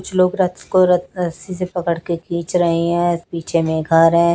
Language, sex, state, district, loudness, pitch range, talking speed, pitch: Hindi, female, Chhattisgarh, Raipur, -18 LUFS, 170-180 Hz, 235 wpm, 170 Hz